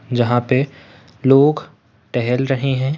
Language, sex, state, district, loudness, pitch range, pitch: Hindi, male, Uttar Pradesh, Muzaffarnagar, -17 LUFS, 120-135 Hz, 130 Hz